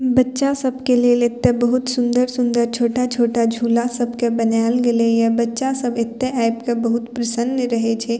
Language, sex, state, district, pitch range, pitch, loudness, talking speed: Maithili, female, Bihar, Purnia, 235-250 Hz, 240 Hz, -18 LUFS, 155 wpm